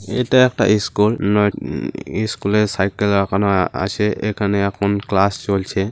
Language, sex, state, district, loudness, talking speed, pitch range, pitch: Bengali, male, West Bengal, Malda, -18 LUFS, 150 wpm, 100-105 Hz, 100 Hz